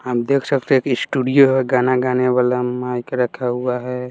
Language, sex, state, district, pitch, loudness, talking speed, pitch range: Hindi, male, Bihar, West Champaran, 125 Hz, -18 LUFS, 205 wpm, 125-130 Hz